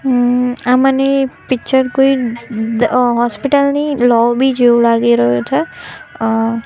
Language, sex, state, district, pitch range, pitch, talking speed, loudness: Gujarati, female, Gujarat, Gandhinagar, 235-270 Hz, 245 Hz, 125 wpm, -13 LUFS